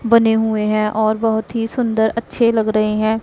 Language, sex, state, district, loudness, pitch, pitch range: Hindi, female, Punjab, Pathankot, -17 LUFS, 220 Hz, 215-230 Hz